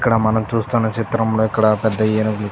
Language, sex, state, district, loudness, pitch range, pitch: Telugu, male, Andhra Pradesh, Chittoor, -18 LUFS, 110-115 Hz, 110 Hz